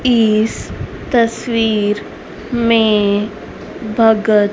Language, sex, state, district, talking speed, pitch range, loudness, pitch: Hindi, female, Haryana, Rohtak, 55 wpm, 210-230 Hz, -15 LUFS, 220 Hz